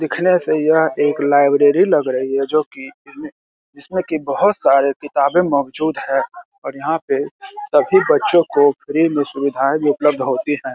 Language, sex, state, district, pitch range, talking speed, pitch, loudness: Hindi, male, Bihar, Jamui, 140-185 Hz, 180 wpm, 150 Hz, -16 LUFS